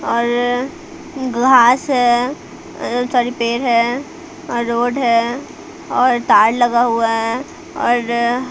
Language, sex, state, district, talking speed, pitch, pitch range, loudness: Hindi, female, Bihar, Patna, 115 wpm, 245 Hz, 235-275 Hz, -16 LUFS